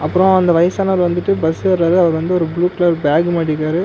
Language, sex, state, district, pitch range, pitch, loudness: Tamil, male, Tamil Nadu, Namakkal, 165-180 Hz, 175 Hz, -15 LUFS